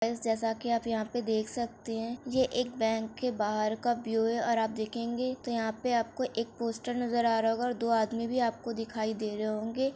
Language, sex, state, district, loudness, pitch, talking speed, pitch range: Hindi, female, Uttar Pradesh, Budaun, -31 LUFS, 230 Hz, 230 wpm, 225-240 Hz